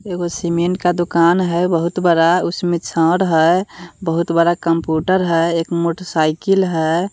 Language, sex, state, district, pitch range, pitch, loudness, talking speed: Hindi, female, Bihar, West Champaran, 165-180 Hz, 170 Hz, -16 LUFS, 145 wpm